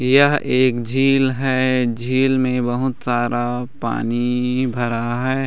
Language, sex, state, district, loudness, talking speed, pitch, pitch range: Hindi, male, Chhattisgarh, Raigarh, -19 LUFS, 120 wpm, 125 Hz, 120-130 Hz